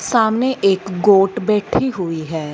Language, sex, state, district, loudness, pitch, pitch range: Hindi, female, Punjab, Fazilka, -17 LUFS, 200 Hz, 185-220 Hz